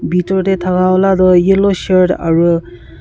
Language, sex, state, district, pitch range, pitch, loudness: Nagamese, female, Nagaland, Kohima, 175-190 Hz, 185 Hz, -12 LUFS